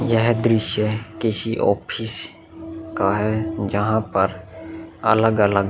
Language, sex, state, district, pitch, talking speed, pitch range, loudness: Hindi, male, Uttar Pradesh, Muzaffarnagar, 110 Hz, 105 wpm, 105-115 Hz, -21 LUFS